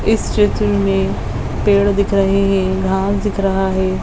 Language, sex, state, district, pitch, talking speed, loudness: Hindi, female, Bihar, Madhepura, 190 Hz, 165 wpm, -16 LUFS